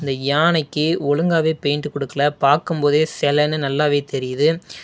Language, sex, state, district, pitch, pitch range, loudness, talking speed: Tamil, male, Tamil Nadu, Namakkal, 150 Hz, 140-160 Hz, -19 LUFS, 110 wpm